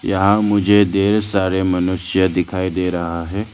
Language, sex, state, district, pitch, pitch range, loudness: Hindi, male, Arunachal Pradesh, Lower Dibang Valley, 95 Hz, 90-100 Hz, -17 LUFS